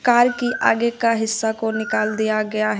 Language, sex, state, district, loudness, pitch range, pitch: Hindi, female, Uttar Pradesh, Shamli, -20 LUFS, 215-235 Hz, 220 Hz